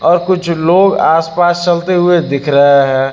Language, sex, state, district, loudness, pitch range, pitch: Hindi, male, Uttar Pradesh, Lucknow, -11 LUFS, 140-175 Hz, 170 Hz